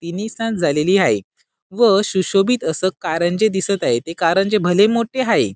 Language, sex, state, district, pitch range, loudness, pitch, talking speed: Marathi, male, Maharashtra, Sindhudurg, 170-215 Hz, -17 LUFS, 195 Hz, 160 wpm